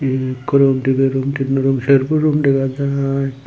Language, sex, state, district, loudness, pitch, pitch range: Chakma, male, Tripura, Unakoti, -16 LUFS, 135 Hz, 135-140 Hz